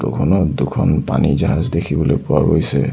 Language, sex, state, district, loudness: Assamese, male, Assam, Sonitpur, -16 LUFS